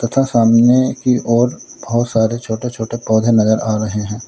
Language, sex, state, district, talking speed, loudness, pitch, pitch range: Hindi, male, Uttar Pradesh, Lalitpur, 180 wpm, -15 LUFS, 115 Hz, 110-120 Hz